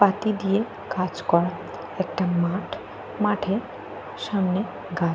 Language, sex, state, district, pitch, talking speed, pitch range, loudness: Bengali, female, Jharkhand, Jamtara, 195 Hz, 105 wpm, 180-205 Hz, -26 LUFS